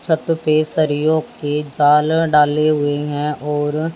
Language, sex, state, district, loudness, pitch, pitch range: Hindi, female, Haryana, Jhajjar, -17 LUFS, 150 Hz, 145-155 Hz